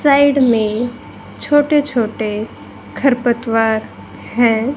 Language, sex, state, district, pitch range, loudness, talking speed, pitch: Hindi, female, Haryana, Rohtak, 225-280 Hz, -16 LUFS, 75 wpm, 240 Hz